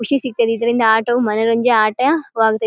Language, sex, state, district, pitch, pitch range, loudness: Kannada, female, Karnataka, Bellary, 230 Hz, 220-245 Hz, -16 LUFS